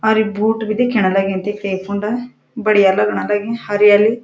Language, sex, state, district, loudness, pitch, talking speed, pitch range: Garhwali, female, Uttarakhand, Uttarkashi, -16 LUFS, 210 Hz, 155 wpm, 200-220 Hz